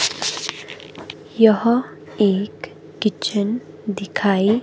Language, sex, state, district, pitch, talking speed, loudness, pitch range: Hindi, female, Himachal Pradesh, Shimla, 210 Hz, 50 wpm, -20 LUFS, 200-225 Hz